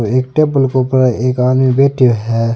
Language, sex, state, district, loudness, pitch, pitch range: Rajasthani, male, Rajasthan, Nagaur, -13 LUFS, 130 Hz, 125-130 Hz